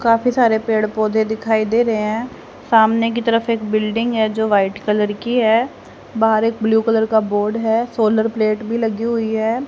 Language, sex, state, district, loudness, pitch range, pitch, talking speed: Hindi, female, Haryana, Jhajjar, -17 LUFS, 215-230 Hz, 220 Hz, 200 wpm